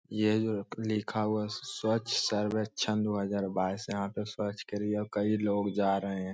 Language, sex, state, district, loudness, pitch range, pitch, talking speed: Magahi, male, Bihar, Lakhisarai, -32 LUFS, 100-110 Hz, 105 Hz, 180 wpm